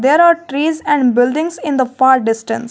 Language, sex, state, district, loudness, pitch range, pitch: English, female, Jharkhand, Garhwa, -14 LUFS, 245-315 Hz, 265 Hz